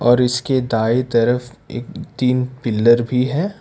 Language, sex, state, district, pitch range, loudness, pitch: Hindi, male, Karnataka, Bangalore, 120-130 Hz, -18 LUFS, 125 Hz